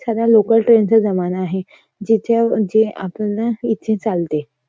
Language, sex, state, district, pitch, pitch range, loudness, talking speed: Marathi, female, Maharashtra, Nagpur, 220 Hz, 185-225 Hz, -17 LUFS, 130 wpm